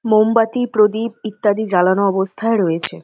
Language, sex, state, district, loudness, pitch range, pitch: Bengali, female, West Bengal, North 24 Parganas, -16 LUFS, 190-225 Hz, 215 Hz